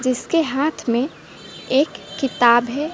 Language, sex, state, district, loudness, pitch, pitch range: Hindi, female, West Bengal, Alipurduar, -19 LUFS, 265 Hz, 240-295 Hz